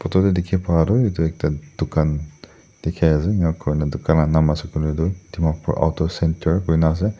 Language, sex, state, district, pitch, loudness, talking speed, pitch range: Nagamese, male, Nagaland, Dimapur, 80 Hz, -20 LUFS, 200 wpm, 80-90 Hz